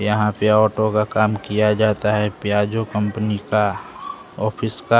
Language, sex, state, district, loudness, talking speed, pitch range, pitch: Hindi, male, Bihar, West Champaran, -19 LUFS, 165 wpm, 105-110 Hz, 105 Hz